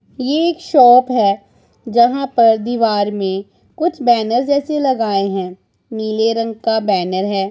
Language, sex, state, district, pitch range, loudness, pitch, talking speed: Hindi, male, Punjab, Pathankot, 205-255 Hz, -15 LUFS, 230 Hz, 145 wpm